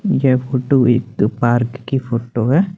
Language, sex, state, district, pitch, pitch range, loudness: Hindi, male, Chandigarh, Chandigarh, 125 Hz, 120-135 Hz, -17 LUFS